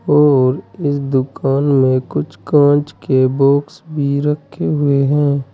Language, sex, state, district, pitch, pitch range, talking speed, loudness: Hindi, male, Uttar Pradesh, Saharanpur, 140 Hz, 135-145 Hz, 130 wpm, -15 LUFS